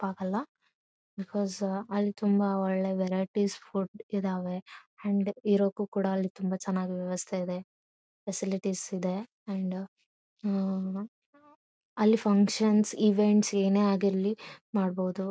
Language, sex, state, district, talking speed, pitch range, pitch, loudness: Kannada, female, Karnataka, Bellary, 100 wpm, 190-205 Hz, 195 Hz, -30 LUFS